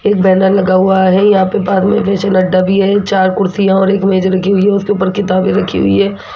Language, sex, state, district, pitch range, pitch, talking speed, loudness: Hindi, female, Rajasthan, Jaipur, 185-200 Hz, 190 Hz, 255 wpm, -11 LUFS